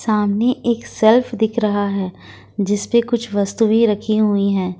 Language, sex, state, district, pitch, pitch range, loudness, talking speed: Hindi, female, Jharkhand, Ranchi, 215 Hz, 200-230 Hz, -17 LUFS, 150 wpm